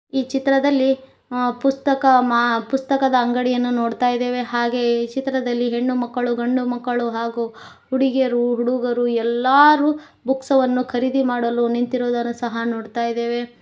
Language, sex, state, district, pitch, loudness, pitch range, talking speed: Kannada, female, Karnataka, Koppal, 245 Hz, -20 LUFS, 240-265 Hz, 105 wpm